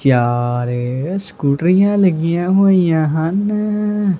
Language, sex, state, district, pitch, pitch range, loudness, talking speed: Punjabi, male, Punjab, Kapurthala, 175 Hz, 140-195 Hz, -16 LUFS, 85 wpm